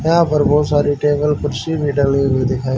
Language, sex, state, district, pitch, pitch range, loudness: Hindi, male, Haryana, Rohtak, 145 Hz, 140-150 Hz, -16 LUFS